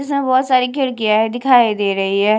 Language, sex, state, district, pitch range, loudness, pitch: Hindi, female, Punjab, Kapurthala, 215-260 Hz, -15 LUFS, 240 Hz